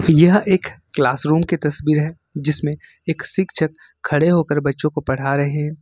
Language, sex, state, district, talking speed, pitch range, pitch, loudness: Hindi, male, Jharkhand, Ranchi, 175 wpm, 145-165 Hz, 150 Hz, -19 LUFS